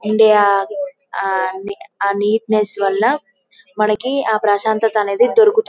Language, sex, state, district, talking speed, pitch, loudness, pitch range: Telugu, female, Telangana, Karimnagar, 105 wpm, 215 Hz, -16 LUFS, 200-275 Hz